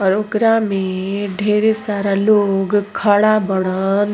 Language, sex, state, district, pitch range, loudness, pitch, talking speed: Bhojpuri, female, Uttar Pradesh, Ghazipur, 195-215 Hz, -16 LUFS, 205 Hz, 115 wpm